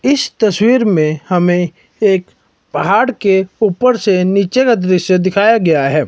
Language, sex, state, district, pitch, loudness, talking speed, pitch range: Hindi, male, Himachal Pradesh, Shimla, 195 Hz, -13 LUFS, 150 wpm, 180-225 Hz